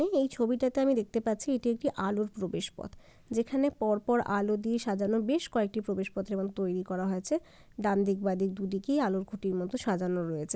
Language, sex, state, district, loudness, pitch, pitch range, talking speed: Bengali, female, West Bengal, Jalpaiguri, -31 LUFS, 210 Hz, 195-245 Hz, 175 wpm